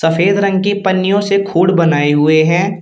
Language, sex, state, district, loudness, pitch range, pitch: Hindi, male, Uttar Pradesh, Shamli, -12 LUFS, 165-200 Hz, 185 Hz